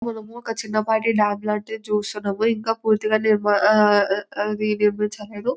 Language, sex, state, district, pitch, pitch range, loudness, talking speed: Telugu, female, Telangana, Nalgonda, 215 Hz, 210-220 Hz, -21 LUFS, 130 wpm